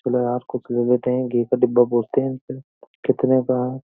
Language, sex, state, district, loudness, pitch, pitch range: Hindi, male, Uttar Pradesh, Jyotiba Phule Nagar, -20 LUFS, 125 Hz, 120-130 Hz